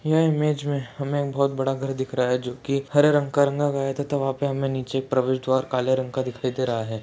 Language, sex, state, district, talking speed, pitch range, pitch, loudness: Hindi, male, Uttarakhand, Tehri Garhwal, 280 wpm, 130-140 Hz, 135 Hz, -24 LUFS